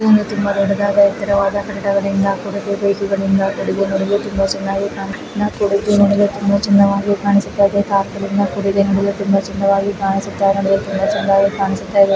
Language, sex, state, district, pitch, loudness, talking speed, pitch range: Kannada, female, Karnataka, Belgaum, 200 Hz, -16 LUFS, 95 wpm, 195-200 Hz